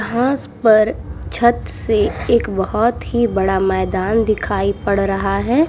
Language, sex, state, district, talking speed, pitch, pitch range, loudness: Hindi, female, Uttar Pradesh, Muzaffarnagar, 135 wpm, 215 Hz, 195-235 Hz, -17 LUFS